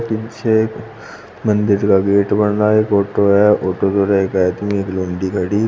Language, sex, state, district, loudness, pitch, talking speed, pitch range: Hindi, male, Uttar Pradesh, Shamli, -16 LUFS, 100 Hz, 180 wpm, 95-105 Hz